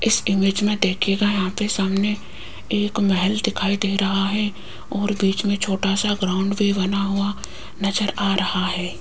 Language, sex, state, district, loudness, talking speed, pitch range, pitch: Hindi, female, Rajasthan, Jaipur, -21 LUFS, 175 wpm, 195-205 Hz, 200 Hz